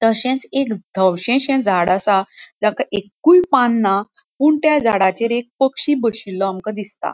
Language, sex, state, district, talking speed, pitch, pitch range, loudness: Konkani, female, Goa, North and South Goa, 145 wpm, 230 Hz, 195-270 Hz, -17 LUFS